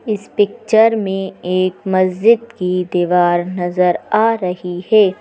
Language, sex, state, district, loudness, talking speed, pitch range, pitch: Hindi, female, Madhya Pradesh, Bhopal, -16 LUFS, 125 wpm, 180-215 Hz, 185 Hz